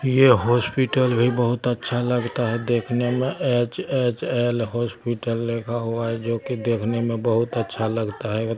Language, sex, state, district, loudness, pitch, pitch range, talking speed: Hindi, male, Bihar, Araria, -22 LUFS, 120 Hz, 115-125 Hz, 155 wpm